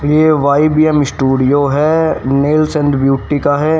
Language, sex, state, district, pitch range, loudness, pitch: Hindi, male, Haryana, Rohtak, 140-155 Hz, -12 LUFS, 145 Hz